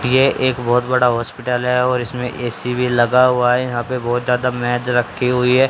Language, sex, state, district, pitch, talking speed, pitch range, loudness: Hindi, female, Haryana, Jhajjar, 125 Hz, 220 wpm, 120-125 Hz, -17 LUFS